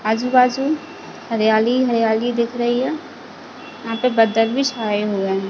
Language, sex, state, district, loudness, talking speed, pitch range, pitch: Hindi, female, Chhattisgarh, Bilaspur, -18 LUFS, 140 wpm, 220-250 Hz, 235 Hz